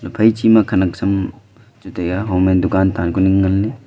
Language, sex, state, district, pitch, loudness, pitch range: Wancho, male, Arunachal Pradesh, Longding, 95 Hz, -16 LUFS, 90-105 Hz